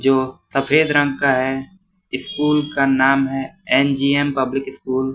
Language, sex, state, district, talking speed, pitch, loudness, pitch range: Hindi, male, Bihar, West Champaran, 150 wpm, 135 Hz, -18 LUFS, 135-145 Hz